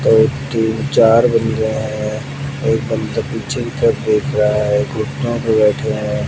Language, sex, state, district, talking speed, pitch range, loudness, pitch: Hindi, male, Haryana, Jhajjar, 170 wpm, 110-135 Hz, -16 LUFS, 125 Hz